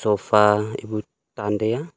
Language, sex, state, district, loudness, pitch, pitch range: Wancho, male, Arunachal Pradesh, Longding, -22 LUFS, 105 Hz, 105-110 Hz